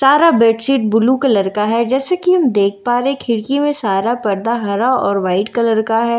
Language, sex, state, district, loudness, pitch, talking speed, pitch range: Hindi, female, Bihar, Katihar, -15 LUFS, 235 Hz, 250 wpm, 210-265 Hz